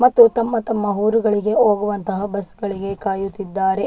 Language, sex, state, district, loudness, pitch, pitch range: Kannada, female, Karnataka, Dakshina Kannada, -19 LUFS, 205 Hz, 195-220 Hz